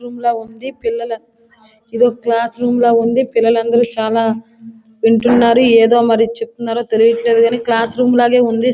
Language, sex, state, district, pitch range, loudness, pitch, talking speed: Telugu, female, Andhra Pradesh, Srikakulam, 230-240 Hz, -14 LUFS, 230 Hz, 145 wpm